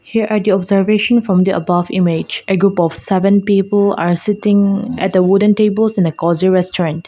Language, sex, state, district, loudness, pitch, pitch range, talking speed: English, female, Mizoram, Aizawl, -14 LUFS, 195 Hz, 180-210 Hz, 195 wpm